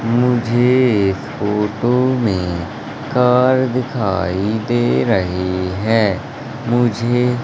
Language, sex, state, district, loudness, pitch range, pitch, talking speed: Hindi, male, Madhya Pradesh, Umaria, -17 LUFS, 95-125 Hz, 115 Hz, 80 wpm